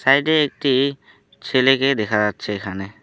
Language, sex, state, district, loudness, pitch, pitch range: Bengali, male, West Bengal, Alipurduar, -19 LUFS, 130 Hz, 105-135 Hz